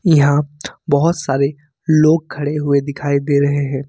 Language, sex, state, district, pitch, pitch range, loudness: Hindi, male, Jharkhand, Ranchi, 145 Hz, 140-155 Hz, -16 LUFS